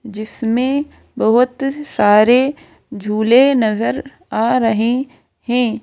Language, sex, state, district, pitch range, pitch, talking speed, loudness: Hindi, female, Madhya Pradesh, Bhopal, 220-270 Hz, 245 Hz, 80 wpm, -15 LUFS